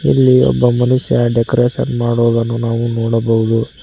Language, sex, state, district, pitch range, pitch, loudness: Kannada, male, Karnataka, Koppal, 115-120 Hz, 120 Hz, -14 LUFS